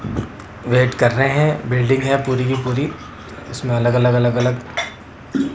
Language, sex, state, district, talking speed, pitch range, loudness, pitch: Hindi, male, Rajasthan, Jaipur, 150 wpm, 120-135 Hz, -18 LUFS, 125 Hz